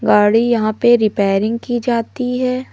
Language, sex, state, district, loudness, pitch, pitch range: Hindi, female, Madhya Pradesh, Umaria, -16 LUFS, 235 Hz, 215-245 Hz